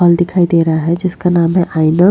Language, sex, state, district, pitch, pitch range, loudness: Hindi, female, Goa, North and South Goa, 175 Hz, 165-180 Hz, -13 LUFS